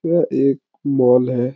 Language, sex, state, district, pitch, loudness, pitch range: Hindi, male, Bihar, Supaul, 135 Hz, -17 LUFS, 125-140 Hz